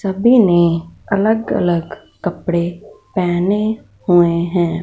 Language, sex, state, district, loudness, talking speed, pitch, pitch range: Hindi, female, Punjab, Fazilka, -16 LUFS, 100 wpm, 175 Hz, 170-205 Hz